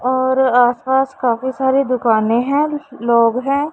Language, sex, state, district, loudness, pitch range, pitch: Hindi, female, Punjab, Pathankot, -16 LUFS, 240-270 Hz, 260 Hz